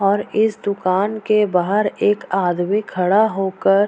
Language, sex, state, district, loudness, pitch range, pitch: Hindi, female, Bihar, Purnia, -18 LUFS, 185-210 Hz, 200 Hz